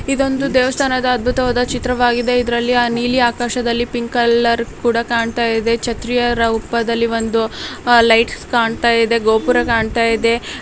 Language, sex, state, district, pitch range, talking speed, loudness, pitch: Kannada, female, Karnataka, Raichur, 230-245 Hz, 125 wpm, -16 LUFS, 235 Hz